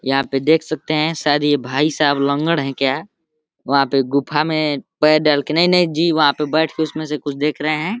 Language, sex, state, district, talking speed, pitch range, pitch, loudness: Hindi, male, Uttar Pradesh, Deoria, 250 wpm, 140-160 Hz, 150 Hz, -17 LUFS